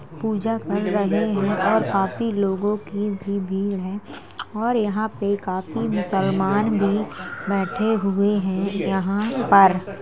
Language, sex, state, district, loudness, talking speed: Hindi, male, Uttar Pradesh, Jalaun, -22 LUFS, 140 wpm